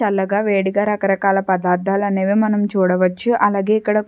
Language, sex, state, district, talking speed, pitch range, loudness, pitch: Telugu, female, Andhra Pradesh, Chittoor, 130 wpm, 190-210 Hz, -17 LUFS, 200 Hz